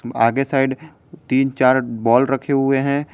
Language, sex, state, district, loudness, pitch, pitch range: Hindi, male, Jharkhand, Garhwa, -18 LUFS, 135 Hz, 130-140 Hz